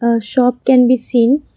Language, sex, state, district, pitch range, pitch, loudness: English, female, Assam, Kamrup Metropolitan, 235-255 Hz, 250 Hz, -13 LUFS